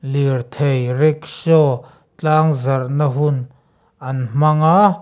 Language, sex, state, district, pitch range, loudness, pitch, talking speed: Mizo, male, Mizoram, Aizawl, 135-155 Hz, -17 LUFS, 145 Hz, 85 wpm